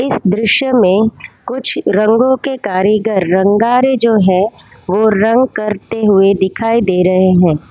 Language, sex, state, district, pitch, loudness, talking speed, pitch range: Hindi, female, Gujarat, Valsad, 215 Hz, -12 LUFS, 130 wpm, 190-235 Hz